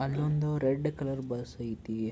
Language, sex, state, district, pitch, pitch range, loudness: Kannada, male, Karnataka, Belgaum, 135 Hz, 120-150 Hz, -32 LUFS